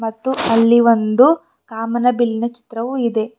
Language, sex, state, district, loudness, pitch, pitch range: Kannada, female, Karnataka, Bidar, -16 LUFS, 235 Hz, 225-245 Hz